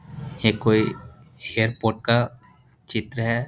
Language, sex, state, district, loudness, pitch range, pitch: Hindi, male, Bihar, Jahanabad, -23 LUFS, 110-125 Hz, 115 Hz